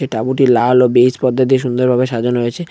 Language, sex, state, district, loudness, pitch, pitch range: Bengali, male, West Bengal, Cooch Behar, -13 LUFS, 125 Hz, 125-130 Hz